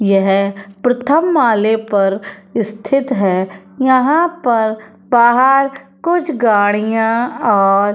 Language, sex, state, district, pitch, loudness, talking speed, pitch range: Hindi, female, Uttar Pradesh, Etah, 225 Hz, -14 LUFS, 100 wpm, 200-265 Hz